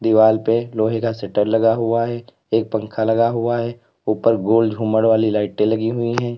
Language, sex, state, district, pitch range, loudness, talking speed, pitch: Hindi, male, Uttar Pradesh, Lalitpur, 110-115 Hz, -18 LUFS, 195 wpm, 115 Hz